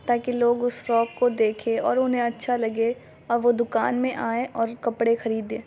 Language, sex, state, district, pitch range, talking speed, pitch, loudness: Hindi, female, Bihar, Muzaffarpur, 230-245 Hz, 190 wpm, 235 Hz, -24 LUFS